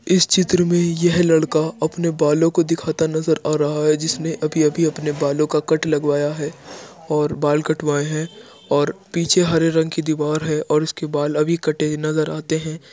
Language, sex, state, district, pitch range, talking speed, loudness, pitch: Hindi, male, Uttar Pradesh, Jyotiba Phule Nagar, 150-165 Hz, 185 wpm, -19 LUFS, 155 Hz